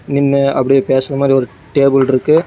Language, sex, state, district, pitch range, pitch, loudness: Tamil, male, Tamil Nadu, Namakkal, 130-140 Hz, 135 Hz, -13 LUFS